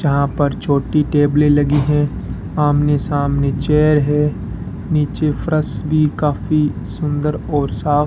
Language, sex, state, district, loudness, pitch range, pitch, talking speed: Hindi, male, Rajasthan, Bikaner, -17 LUFS, 140-150 Hz, 145 Hz, 135 wpm